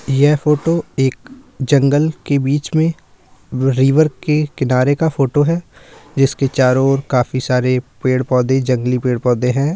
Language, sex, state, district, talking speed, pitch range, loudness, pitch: Hindi, male, Uttar Pradesh, Muzaffarnagar, 140 wpm, 130-150 Hz, -16 LUFS, 135 Hz